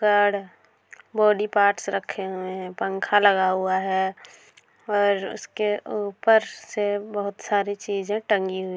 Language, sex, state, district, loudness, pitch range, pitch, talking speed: Hindi, female, Bihar, Darbhanga, -24 LUFS, 190-210 Hz, 205 Hz, 130 wpm